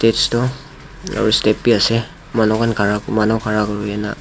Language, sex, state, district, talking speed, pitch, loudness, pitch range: Nagamese, male, Nagaland, Dimapur, 100 wpm, 110 Hz, -17 LUFS, 105-120 Hz